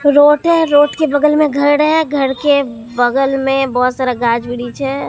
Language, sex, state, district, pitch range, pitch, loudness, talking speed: Hindi, female, Bihar, Katihar, 250-295 Hz, 275 Hz, -13 LUFS, 175 wpm